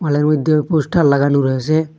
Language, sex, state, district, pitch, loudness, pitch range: Bengali, male, Assam, Hailakandi, 150 Hz, -15 LUFS, 140-155 Hz